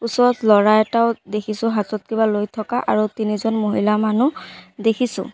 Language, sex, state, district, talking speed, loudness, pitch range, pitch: Assamese, female, Assam, Sonitpur, 145 wpm, -19 LUFS, 210-230 Hz, 215 Hz